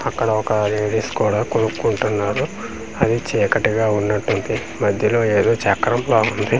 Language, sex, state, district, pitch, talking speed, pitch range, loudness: Telugu, male, Andhra Pradesh, Manyam, 110 Hz, 125 wpm, 105-110 Hz, -19 LUFS